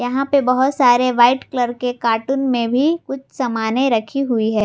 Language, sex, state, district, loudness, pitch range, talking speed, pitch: Hindi, female, Jharkhand, Garhwa, -17 LUFS, 235-270 Hz, 195 wpm, 250 Hz